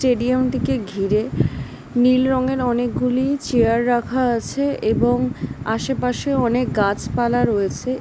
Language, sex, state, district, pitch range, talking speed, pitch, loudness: Bengali, female, West Bengal, Jhargram, 200-255 Hz, 95 wpm, 240 Hz, -20 LUFS